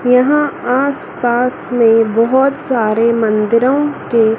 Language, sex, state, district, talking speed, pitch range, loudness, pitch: Hindi, female, Madhya Pradesh, Dhar, 110 wpm, 230-265 Hz, -13 LUFS, 245 Hz